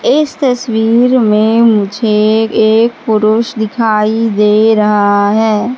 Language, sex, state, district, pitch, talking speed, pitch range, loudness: Hindi, female, Madhya Pradesh, Katni, 220 Hz, 105 wpm, 215-230 Hz, -10 LUFS